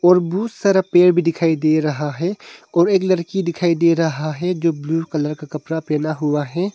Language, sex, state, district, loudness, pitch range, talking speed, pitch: Hindi, male, Arunachal Pradesh, Longding, -18 LUFS, 155-180 Hz, 215 wpm, 165 Hz